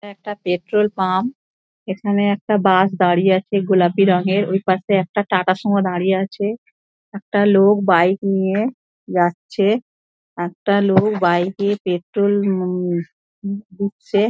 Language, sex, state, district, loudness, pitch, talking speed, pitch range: Bengali, female, West Bengal, Dakshin Dinajpur, -18 LUFS, 195 Hz, 130 wpm, 185-205 Hz